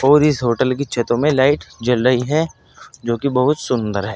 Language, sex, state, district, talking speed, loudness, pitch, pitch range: Hindi, male, Uttar Pradesh, Saharanpur, 215 wpm, -17 LUFS, 130 Hz, 120-140 Hz